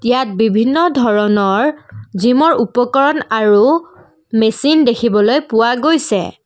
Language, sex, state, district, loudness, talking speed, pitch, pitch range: Assamese, female, Assam, Kamrup Metropolitan, -13 LUFS, 95 wpm, 235 Hz, 215-285 Hz